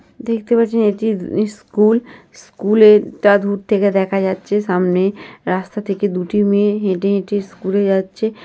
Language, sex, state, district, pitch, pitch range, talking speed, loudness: Bengali, female, West Bengal, North 24 Parganas, 205 Hz, 195-210 Hz, 140 wpm, -16 LUFS